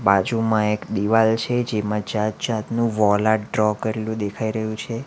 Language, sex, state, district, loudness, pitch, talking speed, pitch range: Gujarati, male, Gujarat, Valsad, -21 LUFS, 110 Hz, 165 wpm, 105-115 Hz